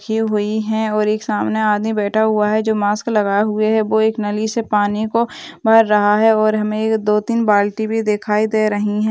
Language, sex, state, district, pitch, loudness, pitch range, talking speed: Hindi, female, Uttar Pradesh, Ghazipur, 215 Hz, -17 LUFS, 210-220 Hz, 225 wpm